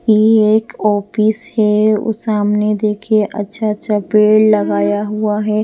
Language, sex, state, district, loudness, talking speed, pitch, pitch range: Hindi, female, Punjab, Pathankot, -14 LUFS, 140 wpm, 215 Hz, 210-215 Hz